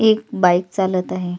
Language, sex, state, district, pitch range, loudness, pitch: Marathi, female, Maharashtra, Solapur, 180-205 Hz, -18 LUFS, 185 Hz